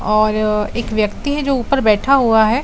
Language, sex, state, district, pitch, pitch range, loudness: Hindi, female, Bihar, Saran, 220 Hz, 215-270 Hz, -16 LUFS